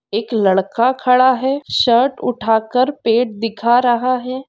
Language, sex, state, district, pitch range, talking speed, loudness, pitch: Hindi, female, Bihar, Darbhanga, 225-255 Hz, 145 wpm, -16 LUFS, 245 Hz